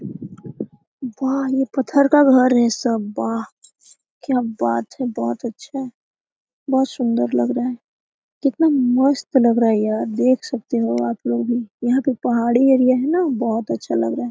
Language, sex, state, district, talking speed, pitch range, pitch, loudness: Hindi, female, Jharkhand, Sahebganj, 170 wpm, 220-265 Hz, 245 Hz, -19 LUFS